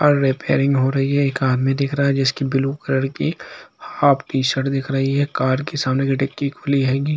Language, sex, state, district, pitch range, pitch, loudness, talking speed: Hindi, male, Bihar, East Champaran, 135-140 Hz, 135 Hz, -19 LUFS, 215 wpm